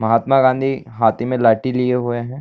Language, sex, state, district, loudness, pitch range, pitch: Hindi, male, Chhattisgarh, Bilaspur, -17 LUFS, 115-130 Hz, 125 Hz